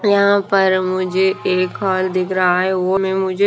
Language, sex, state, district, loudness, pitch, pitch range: Hindi, female, Himachal Pradesh, Shimla, -17 LUFS, 190 Hz, 185-195 Hz